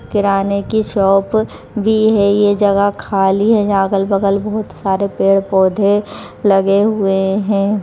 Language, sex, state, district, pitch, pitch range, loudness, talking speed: Hindi, female, Uttar Pradesh, Varanasi, 200 Hz, 195-210 Hz, -14 LUFS, 140 wpm